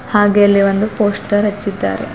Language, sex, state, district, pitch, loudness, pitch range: Kannada, female, Karnataka, Bidar, 205 Hz, -14 LUFS, 195-205 Hz